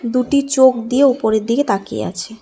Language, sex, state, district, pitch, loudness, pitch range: Bengali, female, West Bengal, Alipurduar, 245 Hz, -16 LUFS, 220-270 Hz